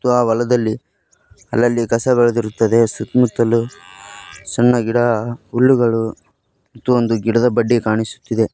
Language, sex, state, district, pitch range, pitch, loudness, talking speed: Kannada, male, Karnataka, Koppal, 115-120 Hz, 115 Hz, -16 LUFS, 105 wpm